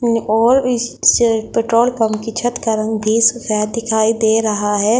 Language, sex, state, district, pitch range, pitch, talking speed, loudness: Hindi, female, Delhi, New Delhi, 220-235 Hz, 225 Hz, 170 wpm, -15 LUFS